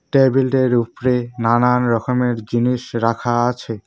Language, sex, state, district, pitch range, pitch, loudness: Bengali, male, West Bengal, Cooch Behar, 115-125 Hz, 120 Hz, -18 LUFS